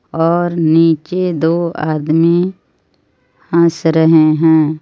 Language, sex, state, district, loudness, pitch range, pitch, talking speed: Hindi, female, Jharkhand, Palamu, -13 LUFS, 155-170 Hz, 160 Hz, 85 wpm